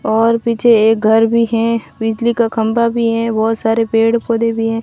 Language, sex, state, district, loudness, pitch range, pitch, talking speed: Hindi, female, Rajasthan, Barmer, -14 LUFS, 225-230 Hz, 230 Hz, 210 wpm